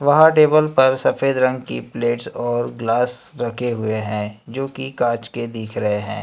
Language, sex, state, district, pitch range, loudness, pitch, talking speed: Hindi, male, Maharashtra, Gondia, 110-130 Hz, -19 LUFS, 120 Hz, 185 wpm